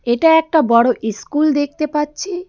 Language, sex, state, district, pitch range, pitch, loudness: Bengali, female, West Bengal, Darjeeling, 240-320 Hz, 295 Hz, -16 LUFS